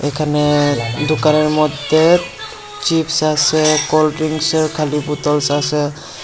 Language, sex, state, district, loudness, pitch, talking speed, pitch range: Bengali, male, Tripura, West Tripura, -15 LUFS, 155 Hz, 95 wpm, 150-155 Hz